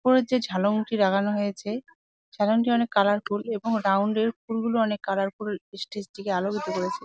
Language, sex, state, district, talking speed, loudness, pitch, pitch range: Bengali, female, West Bengal, Jalpaiguri, 160 wpm, -26 LUFS, 210 Hz, 200-230 Hz